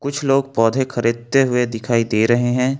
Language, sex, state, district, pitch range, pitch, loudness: Hindi, male, Jharkhand, Ranchi, 115-135 Hz, 125 Hz, -18 LUFS